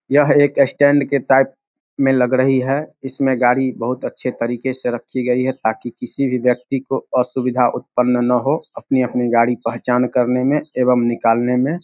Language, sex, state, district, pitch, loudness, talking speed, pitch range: Hindi, male, Bihar, Samastipur, 125 Hz, -17 LUFS, 180 wpm, 125-135 Hz